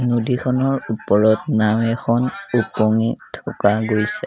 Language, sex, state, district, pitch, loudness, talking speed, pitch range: Assamese, male, Assam, Sonitpur, 115 Hz, -19 LUFS, 100 wpm, 110-125 Hz